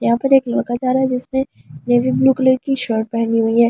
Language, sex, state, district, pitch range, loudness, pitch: Hindi, female, Delhi, New Delhi, 230-265 Hz, -17 LUFS, 250 Hz